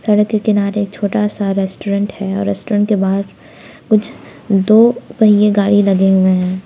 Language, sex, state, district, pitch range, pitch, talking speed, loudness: Hindi, female, Jharkhand, Palamu, 195-210 Hz, 205 Hz, 160 wpm, -14 LUFS